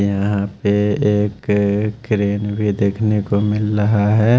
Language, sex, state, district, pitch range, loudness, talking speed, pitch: Hindi, male, Haryana, Jhajjar, 100-105 Hz, -18 LUFS, 135 wpm, 105 Hz